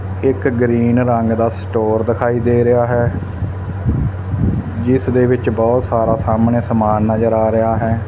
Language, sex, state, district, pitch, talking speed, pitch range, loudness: Punjabi, male, Punjab, Fazilka, 115 Hz, 150 wpm, 105-120 Hz, -16 LUFS